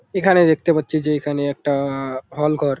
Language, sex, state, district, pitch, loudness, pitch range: Bengali, male, West Bengal, Jalpaiguri, 150 Hz, -19 LUFS, 140-160 Hz